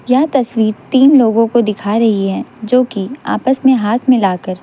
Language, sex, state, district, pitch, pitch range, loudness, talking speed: Hindi, female, Chhattisgarh, Raipur, 230 Hz, 210-260 Hz, -13 LUFS, 180 wpm